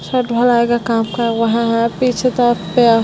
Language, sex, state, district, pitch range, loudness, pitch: Hindi, female, Bihar, Vaishali, 230-245 Hz, -15 LUFS, 235 Hz